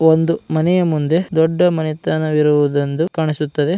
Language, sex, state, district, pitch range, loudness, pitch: Kannada, male, Karnataka, Dharwad, 150-165 Hz, -17 LUFS, 160 Hz